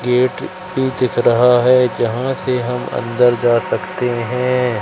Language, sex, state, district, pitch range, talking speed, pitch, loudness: Hindi, male, Madhya Pradesh, Katni, 120-130 Hz, 150 wpm, 125 Hz, -16 LUFS